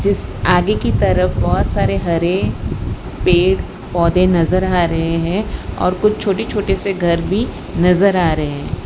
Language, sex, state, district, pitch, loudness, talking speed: Hindi, female, Gujarat, Valsad, 170 Hz, -16 LUFS, 155 wpm